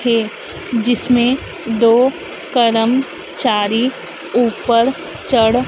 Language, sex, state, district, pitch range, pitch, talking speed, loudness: Hindi, female, Madhya Pradesh, Dhar, 230-255 Hz, 240 Hz, 65 wpm, -16 LUFS